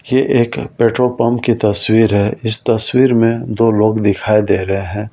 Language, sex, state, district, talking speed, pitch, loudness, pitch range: Hindi, male, Delhi, New Delhi, 200 wpm, 110 Hz, -14 LUFS, 105-120 Hz